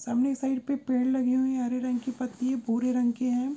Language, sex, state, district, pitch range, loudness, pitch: Hindi, female, Goa, North and South Goa, 250-260 Hz, -28 LUFS, 255 Hz